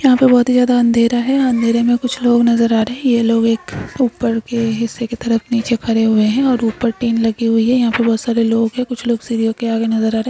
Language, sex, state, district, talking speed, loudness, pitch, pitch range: Hindi, female, Chhattisgarh, Bastar, 275 wpm, -15 LUFS, 235 Hz, 225-245 Hz